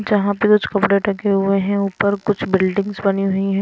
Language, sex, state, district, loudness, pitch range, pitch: Hindi, female, Himachal Pradesh, Shimla, -18 LUFS, 195-205 Hz, 200 Hz